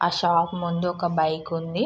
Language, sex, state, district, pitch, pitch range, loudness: Telugu, female, Andhra Pradesh, Srikakulam, 170 Hz, 165-175 Hz, -24 LUFS